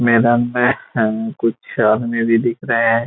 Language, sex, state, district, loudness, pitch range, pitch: Hindi, male, Bihar, Saran, -17 LUFS, 115-120 Hz, 115 Hz